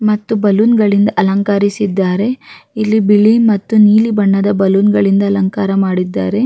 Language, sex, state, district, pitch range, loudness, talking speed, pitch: Kannada, female, Karnataka, Raichur, 200-215 Hz, -12 LUFS, 120 wpm, 205 Hz